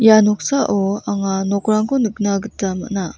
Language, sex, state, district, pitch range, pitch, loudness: Garo, female, Meghalaya, West Garo Hills, 195-215 Hz, 205 Hz, -18 LUFS